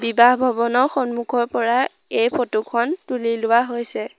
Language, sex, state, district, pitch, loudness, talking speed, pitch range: Assamese, female, Assam, Sonitpur, 240 Hz, -20 LUFS, 145 wpm, 235-250 Hz